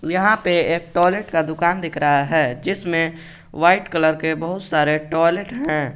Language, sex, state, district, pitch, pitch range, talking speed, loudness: Hindi, male, Jharkhand, Garhwa, 165 Hz, 155-175 Hz, 170 wpm, -19 LUFS